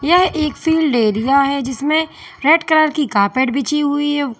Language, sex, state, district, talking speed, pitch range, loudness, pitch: Hindi, female, Uttar Pradesh, Lalitpur, 190 wpm, 270-315 Hz, -16 LUFS, 290 Hz